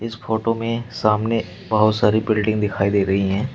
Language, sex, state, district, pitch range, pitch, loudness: Hindi, male, Uttar Pradesh, Shamli, 100-115 Hz, 110 Hz, -20 LUFS